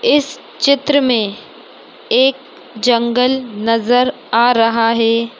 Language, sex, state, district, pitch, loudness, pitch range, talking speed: Hindi, female, Chhattisgarh, Raigarh, 245 Hz, -14 LUFS, 230-260 Hz, 100 wpm